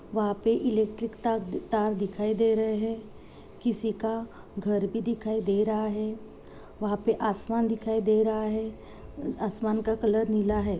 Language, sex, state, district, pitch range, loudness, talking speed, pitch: Hindi, female, Chhattisgarh, Jashpur, 210-225 Hz, -28 LUFS, 85 wpm, 220 Hz